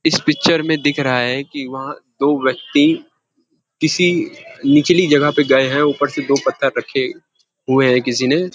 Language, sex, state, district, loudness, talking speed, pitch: Hindi, male, Uttarakhand, Uttarkashi, -16 LUFS, 175 wpm, 150 Hz